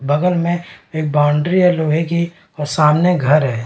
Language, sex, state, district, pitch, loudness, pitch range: Hindi, male, Bihar, Kishanganj, 155 Hz, -16 LUFS, 150-170 Hz